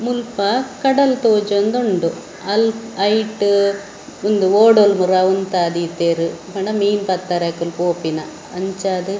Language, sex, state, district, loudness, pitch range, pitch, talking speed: Tulu, female, Karnataka, Dakshina Kannada, -17 LUFS, 180-215 Hz, 200 Hz, 125 wpm